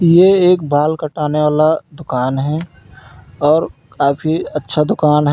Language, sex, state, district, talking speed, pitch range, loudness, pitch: Hindi, male, Uttar Pradesh, Lalitpur, 135 wpm, 140-160 Hz, -15 LUFS, 150 Hz